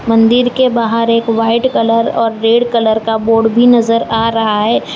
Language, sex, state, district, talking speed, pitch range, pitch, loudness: Hindi, female, Gujarat, Valsad, 195 wpm, 225-230 Hz, 230 Hz, -12 LUFS